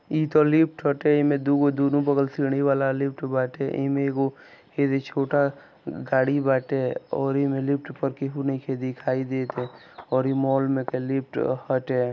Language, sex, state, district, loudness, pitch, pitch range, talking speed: Bhojpuri, male, Bihar, Gopalganj, -24 LUFS, 135 Hz, 130-140 Hz, 205 wpm